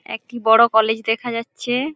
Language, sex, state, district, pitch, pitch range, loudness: Bengali, female, West Bengal, Paschim Medinipur, 230 Hz, 225-240 Hz, -18 LUFS